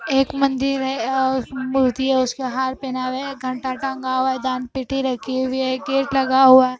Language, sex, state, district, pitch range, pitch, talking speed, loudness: Hindi, female, Punjab, Fazilka, 260-270 Hz, 260 Hz, 210 wpm, -20 LUFS